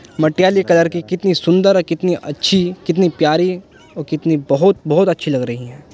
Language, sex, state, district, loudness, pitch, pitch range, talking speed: Hindi, male, Uttar Pradesh, Jyotiba Phule Nagar, -15 LUFS, 170 Hz, 155-185 Hz, 160 wpm